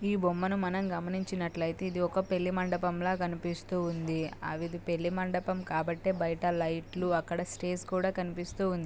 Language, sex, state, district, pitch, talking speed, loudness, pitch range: Telugu, female, Andhra Pradesh, Guntur, 180 Hz, 115 wpm, -33 LUFS, 170-185 Hz